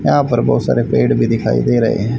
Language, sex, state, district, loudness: Hindi, male, Haryana, Charkhi Dadri, -15 LUFS